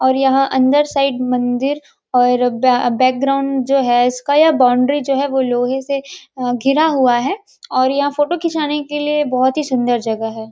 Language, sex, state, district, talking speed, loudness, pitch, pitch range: Hindi, female, Chhattisgarh, Rajnandgaon, 195 wpm, -16 LUFS, 265 Hz, 250-285 Hz